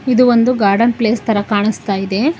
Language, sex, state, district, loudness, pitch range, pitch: Kannada, female, Karnataka, Bangalore, -14 LUFS, 205-245 Hz, 225 Hz